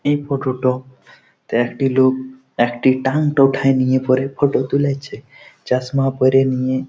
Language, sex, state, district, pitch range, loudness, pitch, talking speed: Bengali, male, West Bengal, Jhargram, 130-135 Hz, -17 LUFS, 130 Hz, 140 wpm